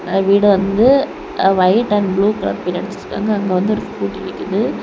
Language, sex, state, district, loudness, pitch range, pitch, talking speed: Tamil, female, Tamil Nadu, Kanyakumari, -16 LUFS, 190-215 Hz, 200 Hz, 185 wpm